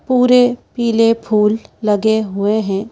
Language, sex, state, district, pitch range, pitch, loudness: Hindi, female, Madhya Pradesh, Bhopal, 210-235 Hz, 220 Hz, -15 LUFS